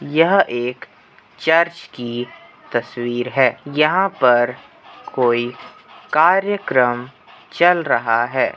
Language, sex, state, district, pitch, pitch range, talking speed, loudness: Hindi, male, Uttar Pradesh, Hamirpur, 125 Hz, 120-165 Hz, 90 wpm, -18 LUFS